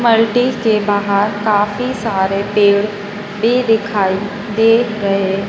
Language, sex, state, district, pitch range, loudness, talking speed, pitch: Hindi, female, Madhya Pradesh, Dhar, 205-225 Hz, -15 LUFS, 110 wpm, 205 Hz